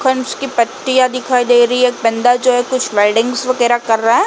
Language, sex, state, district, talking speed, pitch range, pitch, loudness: Hindi, female, Uttar Pradesh, Jalaun, 225 wpm, 235-255 Hz, 245 Hz, -14 LUFS